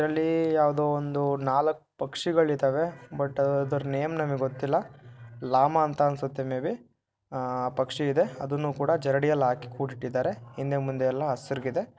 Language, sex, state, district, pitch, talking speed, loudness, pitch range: Kannada, male, Karnataka, Shimoga, 140 Hz, 135 wpm, -27 LUFS, 130-150 Hz